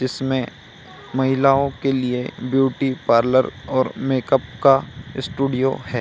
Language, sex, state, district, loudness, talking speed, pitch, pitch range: Hindi, male, Bihar, Samastipur, -20 LUFS, 110 wpm, 130 Hz, 130-135 Hz